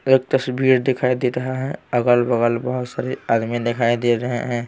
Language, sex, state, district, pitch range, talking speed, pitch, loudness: Hindi, male, Bihar, Patna, 120-130 Hz, 180 wpm, 125 Hz, -20 LUFS